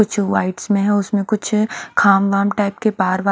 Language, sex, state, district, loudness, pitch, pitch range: Hindi, female, Haryana, Charkhi Dadri, -17 LUFS, 200 Hz, 195-210 Hz